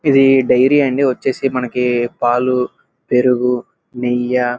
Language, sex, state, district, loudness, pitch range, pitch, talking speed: Telugu, male, Andhra Pradesh, Krishna, -15 LUFS, 125-135 Hz, 125 Hz, 115 wpm